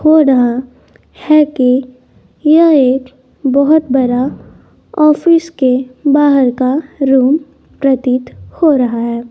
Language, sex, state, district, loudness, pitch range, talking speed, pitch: Hindi, female, Bihar, West Champaran, -12 LUFS, 255-300 Hz, 110 wpm, 270 Hz